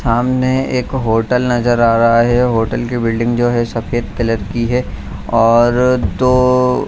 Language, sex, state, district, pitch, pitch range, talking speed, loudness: Hindi, male, Bihar, Jamui, 120 Hz, 115-125 Hz, 165 wpm, -14 LUFS